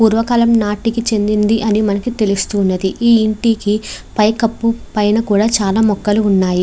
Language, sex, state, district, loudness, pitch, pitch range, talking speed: Telugu, female, Andhra Pradesh, Chittoor, -15 LUFS, 215 Hz, 205-230 Hz, 135 wpm